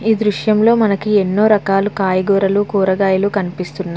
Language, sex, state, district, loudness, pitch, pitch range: Telugu, female, Andhra Pradesh, Visakhapatnam, -15 LUFS, 200 Hz, 190-210 Hz